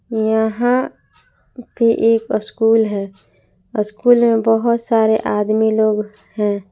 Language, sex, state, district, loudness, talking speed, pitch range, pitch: Hindi, female, Jharkhand, Palamu, -16 LUFS, 105 wpm, 210-230 Hz, 220 Hz